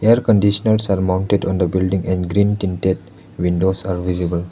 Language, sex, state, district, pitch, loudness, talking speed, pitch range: English, male, Arunachal Pradesh, Lower Dibang Valley, 95 Hz, -18 LUFS, 175 wpm, 90-100 Hz